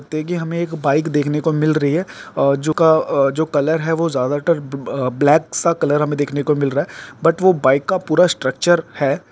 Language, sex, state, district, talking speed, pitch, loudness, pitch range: Hindi, male, Uttarakhand, Tehri Garhwal, 225 wpm, 155 Hz, -17 LUFS, 145-165 Hz